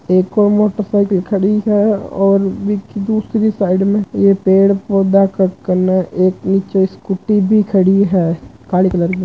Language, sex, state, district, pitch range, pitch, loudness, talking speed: Marwari, male, Rajasthan, Churu, 185-205 Hz, 195 Hz, -14 LUFS, 145 wpm